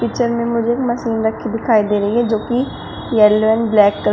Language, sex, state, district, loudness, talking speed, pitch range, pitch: Hindi, female, Uttar Pradesh, Shamli, -16 LUFS, 245 wpm, 215-235 Hz, 225 Hz